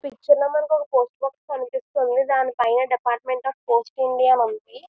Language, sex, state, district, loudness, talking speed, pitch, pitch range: Telugu, female, Andhra Pradesh, Visakhapatnam, -21 LUFS, 170 wpm, 265 Hz, 250-290 Hz